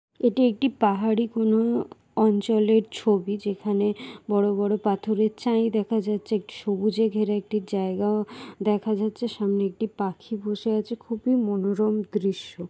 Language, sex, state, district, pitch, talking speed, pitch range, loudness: Bengali, female, West Bengal, Paschim Medinipur, 215 Hz, 125 wpm, 205-220 Hz, -25 LUFS